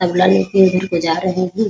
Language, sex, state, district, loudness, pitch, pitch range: Hindi, female, Bihar, Muzaffarpur, -15 LUFS, 185 Hz, 180-190 Hz